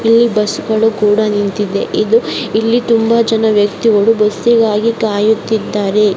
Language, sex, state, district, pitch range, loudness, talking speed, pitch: Kannada, female, Karnataka, Chamarajanagar, 210-225 Hz, -13 LUFS, 85 wpm, 220 Hz